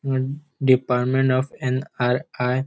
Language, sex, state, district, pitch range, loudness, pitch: Konkani, male, Goa, North and South Goa, 125-135 Hz, -22 LUFS, 130 Hz